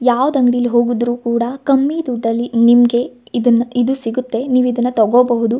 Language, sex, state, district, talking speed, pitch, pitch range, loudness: Kannada, female, Karnataka, Gulbarga, 130 wpm, 245 Hz, 235-250 Hz, -15 LUFS